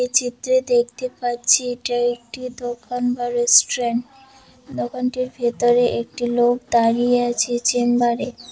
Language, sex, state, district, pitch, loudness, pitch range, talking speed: Bengali, female, West Bengal, Dakshin Dinajpur, 245 Hz, -20 LUFS, 240-250 Hz, 105 wpm